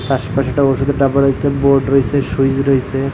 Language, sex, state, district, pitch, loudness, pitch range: Bengali, male, Odisha, Malkangiri, 135 Hz, -15 LUFS, 135-140 Hz